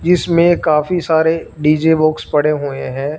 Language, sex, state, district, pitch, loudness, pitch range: Hindi, male, Punjab, Fazilka, 155 Hz, -15 LUFS, 150-170 Hz